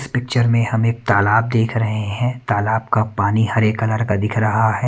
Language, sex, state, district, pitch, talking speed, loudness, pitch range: Hindi, male, Haryana, Rohtak, 110 Hz, 210 wpm, -18 LUFS, 110-115 Hz